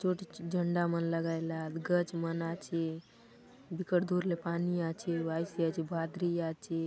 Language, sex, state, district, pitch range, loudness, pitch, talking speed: Halbi, female, Chhattisgarh, Bastar, 165-175 Hz, -34 LUFS, 170 Hz, 150 wpm